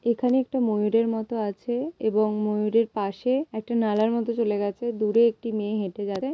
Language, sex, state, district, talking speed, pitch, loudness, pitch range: Bengali, female, West Bengal, Malda, 170 wpm, 225 Hz, -25 LUFS, 210-235 Hz